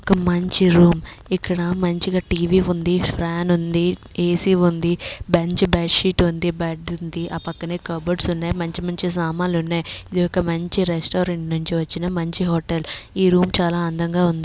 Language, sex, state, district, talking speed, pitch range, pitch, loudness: Telugu, female, Andhra Pradesh, Srikakulam, 165 wpm, 170-180 Hz, 175 Hz, -20 LUFS